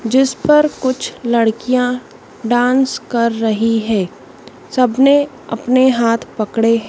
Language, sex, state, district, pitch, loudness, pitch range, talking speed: Hindi, female, Madhya Pradesh, Dhar, 235 Hz, -15 LUFS, 225-260 Hz, 105 wpm